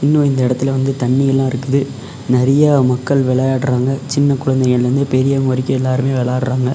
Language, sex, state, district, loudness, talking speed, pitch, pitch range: Tamil, male, Tamil Nadu, Namakkal, -15 LUFS, 140 wpm, 130 Hz, 130-135 Hz